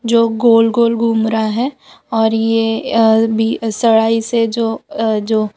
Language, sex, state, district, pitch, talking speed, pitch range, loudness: Hindi, female, Gujarat, Valsad, 225 Hz, 170 wpm, 225-230 Hz, -14 LUFS